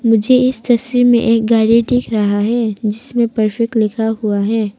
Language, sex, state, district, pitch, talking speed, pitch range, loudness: Hindi, female, Arunachal Pradesh, Papum Pare, 230 Hz, 175 wpm, 215-240 Hz, -14 LUFS